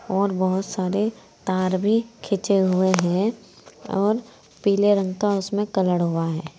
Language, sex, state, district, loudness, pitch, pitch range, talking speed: Hindi, female, Uttar Pradesh, Saharanpur, -22 LUFS, 195 Hz, 185-205 Hz, 145 wpm